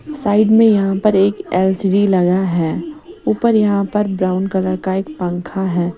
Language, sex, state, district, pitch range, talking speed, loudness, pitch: Hindi, female, Odisha, Sambalpur, 185-210 Hz, 170 wpm, -16 LUFS, 195 Hz